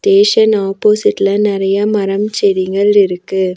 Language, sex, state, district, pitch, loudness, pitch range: Tamil, female, Tamil Nadu, Nilgiris, 200 Hz, -12 LUFS, 195-210 Hz